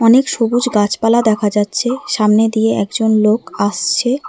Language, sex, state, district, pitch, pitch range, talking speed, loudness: Bengali, female, West Bengal, Alipurduar, 220 Hz, 210-240 Hz, 140 wpm, -14 LUFS